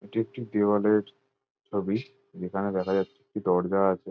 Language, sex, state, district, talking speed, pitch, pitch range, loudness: Bengali, male, West Bengal, Jhargram, 145 wpm, 105 Hz, 95-115 Hz, -27 LUFS